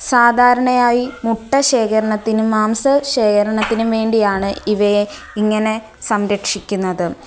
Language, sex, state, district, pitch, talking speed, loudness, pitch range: Malayalam, female, Kerala, Kollam, 220 Hz, 75 wpm, -16 LUFS, 210-240 Hz